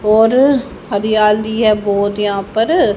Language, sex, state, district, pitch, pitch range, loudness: Hindi, female, Haryana, Jhajjar, 215 Hz, 205-225 Hz, -14 LUFS